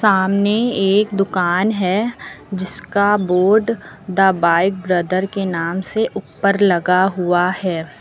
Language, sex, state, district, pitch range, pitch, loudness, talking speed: Hindi, female, Uttar Pradesh, Lucknow, 180-200 Hz, 190 Hz, -17 LUFS, 120 wpm